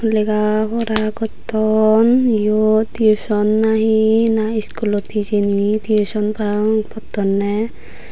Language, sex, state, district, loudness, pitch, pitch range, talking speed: Chakma, female, Tripura, Unakoti, -17 LUFS, 215 Hz, 210-220 Hz, 90 wpm